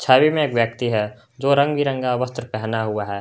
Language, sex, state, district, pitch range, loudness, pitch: Hindi, male, Jharkhand, Garhwa, 110-140 Hz, -20 LUFS, 125 Hz